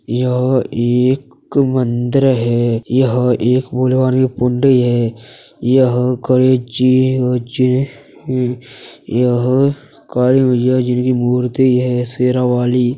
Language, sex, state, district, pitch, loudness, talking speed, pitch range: Hindi, male, Uttar Pradesh, Hamirpur, 125 Hz, -15 LUFS, 90 wpm, 125-130 Hz